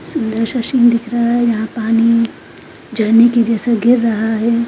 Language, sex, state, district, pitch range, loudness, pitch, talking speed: Hindi, female, Uttarakhand, Tehri Garhwal, 225-235 Hz, -14 LUFS, 230 Hz, 180 wpm